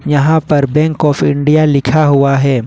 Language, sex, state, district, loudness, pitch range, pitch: Hindi, male, Jharkhand, Ranchi, -11 LUFS, 140-155 Hz, 145 Hz